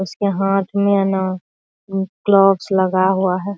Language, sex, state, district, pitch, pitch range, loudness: Hindi, female, Bihar, Araria, 195 Hz, 190-195 Hz, -17 LUFS